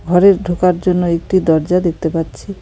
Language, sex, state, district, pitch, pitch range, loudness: Bengali, female, West Bengal, Cooch Behar, 175 Hz, 165-185 Hz, -15 LUFS